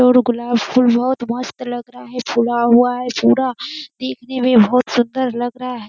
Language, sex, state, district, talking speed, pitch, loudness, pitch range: Hindi, female, Bihar, Kishanganj, 185 wpm, 245 Hz, -17 LUFS, 240-255 Hz